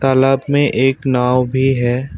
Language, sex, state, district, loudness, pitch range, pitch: Hindi, male, Assam, Kamrup Metropolitan, -15 LUFS, 125-135 Hz, 130 Hz